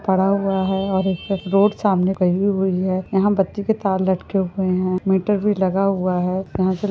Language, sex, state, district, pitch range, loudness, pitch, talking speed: Hindi, female, Jharkhand, Jamtara, 185-195 Hz, -20 LUFS, 190 Hz, 215 wpm